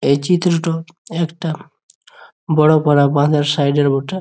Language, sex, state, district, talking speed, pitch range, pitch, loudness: Bengali, male, West Bengal, Jhargram, 140 wpm, 145-170 Hz, 155 Hz, -16 LUFS